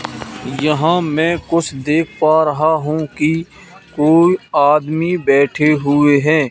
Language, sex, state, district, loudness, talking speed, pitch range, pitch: Hindi, male, Madhya Pradesh, Katni, -15 LUFS, 120 wpm, 150-165 Hz, 155 Hz